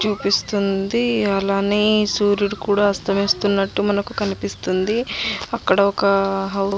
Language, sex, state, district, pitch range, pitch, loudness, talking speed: Telugu, female, Andhra Pradesh, Anantapur, 195-205 Hz, 200 Hz, -19 LUFS, 95 wpm